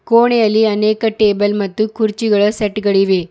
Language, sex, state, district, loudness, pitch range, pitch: Kannada, female, Karnataka, Bidar, -14 LUFS, 205-220 Hz, 210 Hz